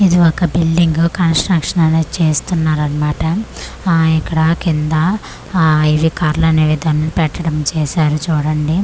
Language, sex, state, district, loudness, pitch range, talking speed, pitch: Telugu, female, Andhra Pradesh, Manyam, -15 LUFS, 155-170 Hz, 110 wpm, 160 Hz